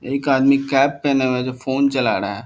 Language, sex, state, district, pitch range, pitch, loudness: Hindi, male, Bihar, Darbhanga, 130-140 Hz, 135 Hz, -18 LUFS